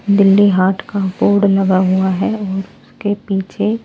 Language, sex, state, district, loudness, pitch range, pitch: Hindi, male, Delhi, New Delhi, -15 LUFS, 190-205 Hz, 195 Hz